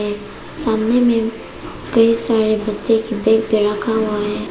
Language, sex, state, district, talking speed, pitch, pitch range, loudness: Hindi, female, Arunachal Pradesh, Papum Pare, 145 wpm, 220 Hz, 215-225 Hz, -16 LUFS